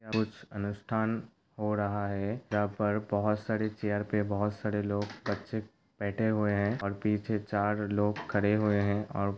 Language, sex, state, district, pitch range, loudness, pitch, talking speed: Hindi, male, Uttar Pradesh, Hamirpur, 100-110 Hz, -32 LUFS, 105 Hz, 165 wpm